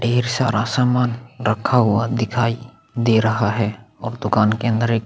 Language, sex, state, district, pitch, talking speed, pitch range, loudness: Hindi, male, Chhattisgarh, Sukma, 115 Hz, 180 wpm, 110-120 Hz, -19 LUFS